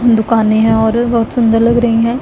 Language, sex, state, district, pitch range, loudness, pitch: Hindi, female, Punjab, Pathankot, 225-235 Hz, -12 LUFS, 230 Hz